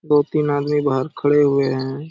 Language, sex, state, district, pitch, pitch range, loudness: Hindi, male, Jharkhand, Sahebganj, 145 Hz, 140-150 Hz, -19 LUFS